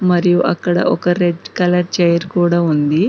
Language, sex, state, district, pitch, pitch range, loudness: Telugu, female, Telangana, Mahabubabad, 175 Hz, 170-180 Hz, -15 LUFS